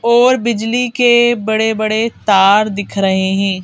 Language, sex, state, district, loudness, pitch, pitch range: Hindi, female, Madhya Pradesh, Bhopal, -13 LUFS, 220 Hz, 200-235 Hz